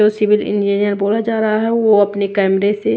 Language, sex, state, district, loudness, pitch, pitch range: Hindi, female, Haryana, Jhajjar, -15 LUFS, 205 Hz, 200-215 Hz